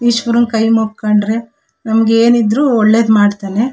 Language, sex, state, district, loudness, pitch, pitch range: Kannada, female, Karnataka, Shimoga, -12 LUFS, 225 Hz, 215-235 Hz